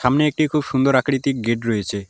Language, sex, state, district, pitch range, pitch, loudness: Bengali, male, West Bengal, Alipurduar, 115-145 Hz, 130 Hz, -19 LUFS